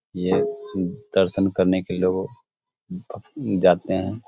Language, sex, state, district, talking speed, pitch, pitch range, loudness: Hindi, male, Bihar, Samastipur, 110 wpm, 95 Hz, 90-95 Hz, -22 LUFS